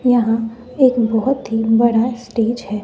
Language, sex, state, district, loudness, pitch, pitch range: Hindi, female, Bihar, West Champaran, -17 LUFS, 235 Hz, 225-245 Hz